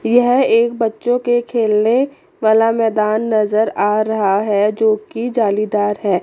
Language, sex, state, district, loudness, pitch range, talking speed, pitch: Hindi, female, Chandigarh, Chandigarh, -16 LUFS, 210-235 Hz, 145 wpm, 220 Hz